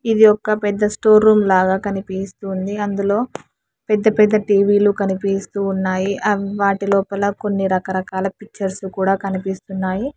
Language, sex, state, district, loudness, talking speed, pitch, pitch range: Telugu, male, Telangana, Hyderabad, -18 LUFS, 130 wpm, 200 Hz, 190-210 Hz